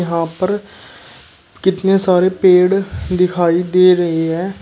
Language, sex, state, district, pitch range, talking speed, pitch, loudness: Hindi, male, Uttar Pradesh, Shamli, 175-190 Hz, 115 wpm, 180 Hz, -14 LUFS